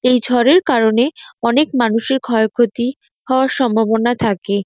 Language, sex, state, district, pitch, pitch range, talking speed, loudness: Bengali, female, West Bengal, North 24 Parganas, 240 Hz, 225-260 Hz, 115 wpm, -15 LUFS